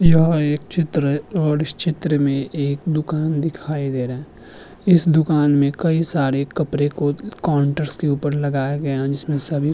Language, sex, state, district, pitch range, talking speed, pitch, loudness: Hindi, male, Uttar Pradesh, Hamirpur, 140-160 Hz, 185 wpm, 150 Hz, -19 LUFS